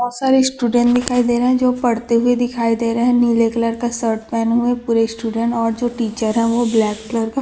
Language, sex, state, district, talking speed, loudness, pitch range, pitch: Hindi, female, Chhattisgarh, Raipur, 250 wpm, -17 LUFS, 230-245 Hz, 235 Hz